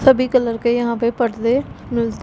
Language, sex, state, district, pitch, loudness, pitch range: Hindi, female, Punjab, Pathankot, 240 Hz, -18 LUFS, 235-255 Hz